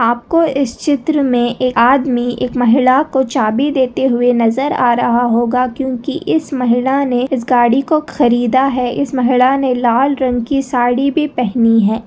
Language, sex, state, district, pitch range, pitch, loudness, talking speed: Hindi, female, Maharashtra, Nagpur, 240-275 Hz, 255 Hz, -14 LUFS, 175 wpm